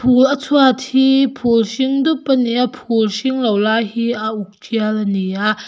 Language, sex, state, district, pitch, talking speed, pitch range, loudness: Mizo, female, Mizoram, Aizawl, 240 Hz, 210 wpm, 215-265 Hz, -16 LUFS